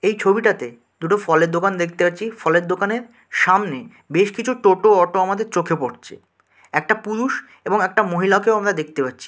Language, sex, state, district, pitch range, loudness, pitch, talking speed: Bengali, male, West Bengal, Dakshin Dinajpur, 170-215 Hz, -19 LUFS, 190 Hz, 160 wpm